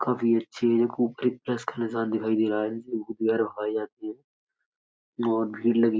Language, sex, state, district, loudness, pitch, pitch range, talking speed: Hindi, male, Uttar Pradesh, Etah, -27 LUFS, 115 Hz, 110-120 Hz, 170 wpm